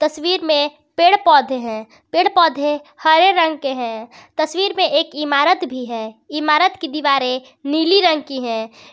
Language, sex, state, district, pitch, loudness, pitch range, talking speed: Hindi, female, Jharkhand, Garhwa, 300 Hz, -17 LUFS, 260-335 Hz, 160 wpm